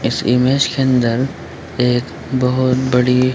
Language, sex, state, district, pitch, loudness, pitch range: Hindi, male, Jharkhand, Sahebganj, 125 Hz, -16 LUFS, 120-130 Hz